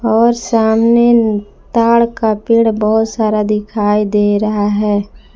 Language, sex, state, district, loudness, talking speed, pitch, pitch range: Hindi, female, Jharkhand, Palamu, -13 LUFS, 125 wpm, 220 Hz, 210-230 Hz